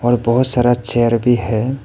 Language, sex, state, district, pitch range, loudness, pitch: Hindi, male, Arunachal Pradesh, Papum Pare, 120-125 Hz, -15 LUFS, 120 Hz